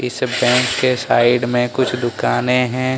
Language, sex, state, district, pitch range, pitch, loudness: Hindi, male, Jharkhand, Deoghar, 125-130 Hz, 125 Hz, -16 LUFS